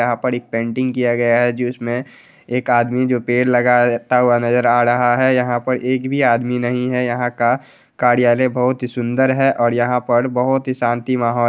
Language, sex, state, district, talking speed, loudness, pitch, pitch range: Hindi, male, Bihar, Gopalganj, 205 wpm, -17 LUFS, 125 Hz, 120-125 Hz